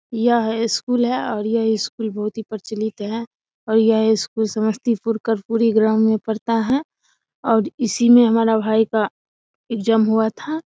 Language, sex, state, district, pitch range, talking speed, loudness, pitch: Hindi, female, Bihar, Samastipur, 220-230 Hz, 155 wpm, -19 LUFS, 225 Hz